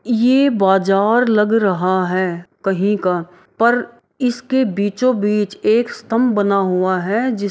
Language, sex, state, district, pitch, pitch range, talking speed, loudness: Maithili, female, Bihar, Araria, 205 Hz, 190-240 Hz, 135 wpm, -17 LUFS